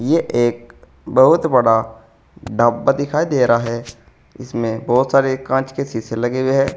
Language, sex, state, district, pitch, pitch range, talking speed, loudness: Hindi, male, Uttar Pradesh, Saharanpur, 120 Hz, 115-135 Hz, 160 wpm, -17 LUFS